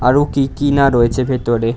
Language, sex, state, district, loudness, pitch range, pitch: Bengali, male, West Bengal, Dakshin Dinajpur, -15 LUFS, 120-140 Hz, 130 Hz